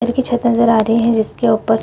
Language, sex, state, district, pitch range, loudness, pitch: Hindi, female, Bihar, Purnia, 220-240 Hz, -15 LUFS, 230 Hz